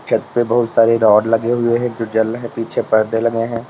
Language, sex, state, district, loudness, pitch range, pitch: Hindi, male, Uttar Pradesh, Lalitpur, -16 LUFS, 115-120 Hz, 115 Hz